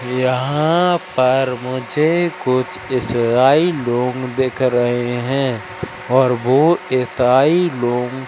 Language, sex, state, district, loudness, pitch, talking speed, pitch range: Hindi, male, Madhya Pradesh, Katni, -17 LUFS, 130 Hz, 95 wpm, 125-150 Hz